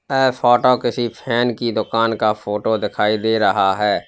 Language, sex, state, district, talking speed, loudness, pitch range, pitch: Hindi, male, Uttar Pradesh, Lalitpur, 175 wpm, -18 LUFS, 110-120 Hz, 115 Hz